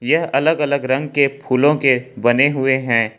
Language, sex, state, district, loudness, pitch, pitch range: Hindi, male, Jharkhand, Ranchi, -16 LUFS, 135 Hz, 130-145 Hz